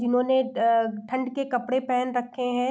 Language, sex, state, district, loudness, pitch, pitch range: Hindi, female, Uttar Pradesh, Deoria, -25 LUFS, 250 Hz, 245-260 Hz